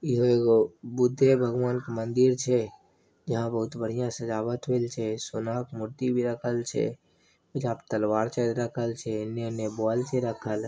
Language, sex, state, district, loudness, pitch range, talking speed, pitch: Maithili, male, Bihar, Begusarai, -28 LUFS, 110-125 Hz, 170 wpm, 120 Hz